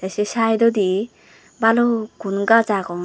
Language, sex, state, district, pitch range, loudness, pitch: Chakma, female, Tripura, West Tripura, 195-225 Hz, -19 LUFS, 220 Hz